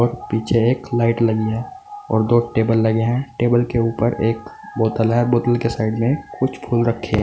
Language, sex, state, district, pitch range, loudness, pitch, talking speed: Hindi, male, Uttar Pradesh, Saharanpur, 115-120 Hz, -19 LUFS, 115 Hz, 200 wpm